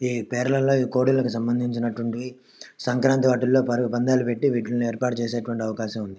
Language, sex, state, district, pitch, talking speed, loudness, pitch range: Telugu, male, Andhra Pradesh, Krishna, 120 Hz, 105 wpm, -23 LUFS, 120-130 Hz